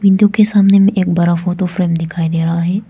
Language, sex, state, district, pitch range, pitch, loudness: Hindi, female, Arunachal Pradesh, Papum Pare, 170-195 Hz, 180 Hz, -13 LUFS